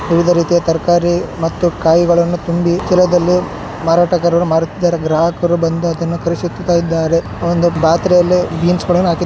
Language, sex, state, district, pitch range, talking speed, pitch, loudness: Kannada, male, Karnataka, Shimoga, 170-175 Hz, 110 wpm, 170 Hz, -14 LUFS